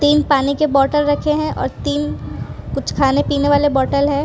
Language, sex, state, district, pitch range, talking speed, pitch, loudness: Hindi, female, Gujarat, Valsad, 285-295 Hz, 195 wpm, 290 Hz, -17 LUFS